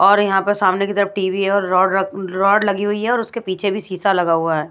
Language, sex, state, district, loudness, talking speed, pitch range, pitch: Hindi, female, Bihar, Patna, -17 LUFS, 295 wpm, 185-205 Hz, 195 Hz